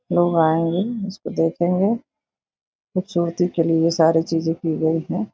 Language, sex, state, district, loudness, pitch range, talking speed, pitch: Hindi, female, Uttar Pradesh, Gorakhpur, -20 LUFS, 165-185 Hz, 145 wpm, 170 Hz